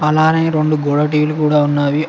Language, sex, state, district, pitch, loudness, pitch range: Telugu, male, Telangana, Mahabubabad, 150 Hz, -15 LUFS, 150-155 Hz